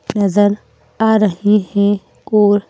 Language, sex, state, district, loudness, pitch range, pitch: Hindi, female, Madhya Pradesh, Bhopal, -15 LUFS, 200-210 Hz, 205 Hz